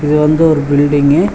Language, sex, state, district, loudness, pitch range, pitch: Tamil, male, Tamil Nadu, Chennai, -11 LUFS, 145-150 Hz, 145 Hz